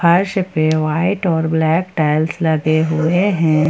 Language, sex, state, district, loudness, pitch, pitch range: Hindi, female, Jharkhand, Ranchi, -16 LUFS, 160 Hz, 155-175 Hz